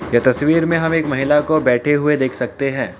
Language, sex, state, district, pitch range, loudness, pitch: Hindi, male, Assam, Kamrup Metropolitan, 130-155 Hz, -17 LUFS, 145 Hz